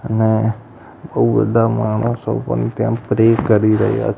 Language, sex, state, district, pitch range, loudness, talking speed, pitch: Gujarati, male, Gujarat, Gandhinagar, 110-115 Hz, -16 LUFS, 130 wpm, 110 Hz